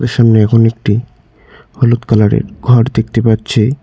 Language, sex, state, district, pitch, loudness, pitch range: Bengali, male, West Bengal, Cooch Behar, 115 Hz, -12 LUFS, 110-125 Hz